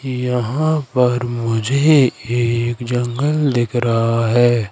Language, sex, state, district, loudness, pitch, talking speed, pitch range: Hindi, male, Madhya Pradesh, Katni, -17 LUFS, 120 Hz, 100 wpm, 120-135 Hz